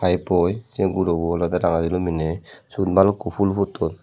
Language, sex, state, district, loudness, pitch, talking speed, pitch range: Chakma, male, Tripura, Dhalai, -21 LUFS, 90 Hz, 150 wpm, 85-95 Hz